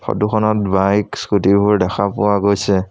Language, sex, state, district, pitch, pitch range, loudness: Assamese, male, Assam, Sonitpur, 100 Hz, 95-105 Hz, -16 LUFS